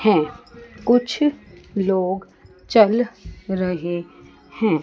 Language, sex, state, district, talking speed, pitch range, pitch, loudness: Hindi, female, Chandigarh, Chandigarh, 75 wpm, 180-235 Hz, 195 Hz, -21 LUFS